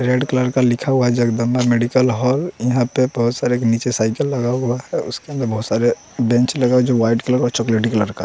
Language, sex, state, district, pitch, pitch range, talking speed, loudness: Hindi, male, Bihar, West Champaran, 125 Hz, 115-125 Hz, 240 wpm, -18 LUFS